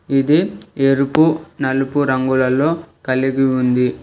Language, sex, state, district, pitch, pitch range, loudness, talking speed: Telugu, male, Telangana, Hyderabad, 135 Hz, 130-150 Hz, -17 LUFS, 90 wpm